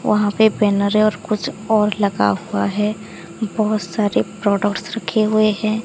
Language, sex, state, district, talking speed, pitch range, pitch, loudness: Hindi, female, Odisha, Sambalpur, 155 wpm, 200-215 Hz, 210 Hz, -18 LUFS